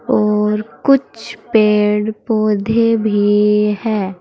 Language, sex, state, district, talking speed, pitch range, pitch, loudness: Hindi, female, Uttar Pradesh, Saharanpur, 85 wpm, 210-220 Hz, 210 Hz, -15 LUFS